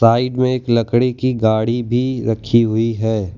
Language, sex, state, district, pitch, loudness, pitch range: Hindi, male, Gujarat, Valsad, 115 Hz, -17 LUFS, 110-125 Hz